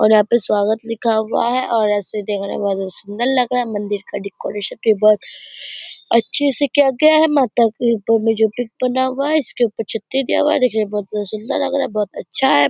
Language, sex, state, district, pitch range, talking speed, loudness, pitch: Hindi, female, Bihar, Purnia, 210-260 Hz, 250 wpm, -17 LUFS, 230 Hz